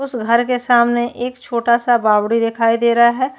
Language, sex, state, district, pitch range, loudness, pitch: Hindi, female, Uttarakhand, Tehri Garhwal, 235-245 Hz, -15 LUFS, 235 Hz